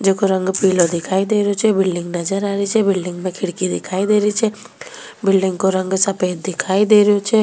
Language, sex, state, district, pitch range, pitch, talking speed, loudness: Rajasthani, female, Rajasthan, Nagaur, 185-205 Hz, 195 Hz, 220 wpm, -17 LUFS